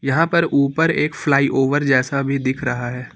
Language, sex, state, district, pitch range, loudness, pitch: Hindi, male, Uttar Pradesh, Lucknow, 130-150 Hz, -18 LUFS, 140 Hz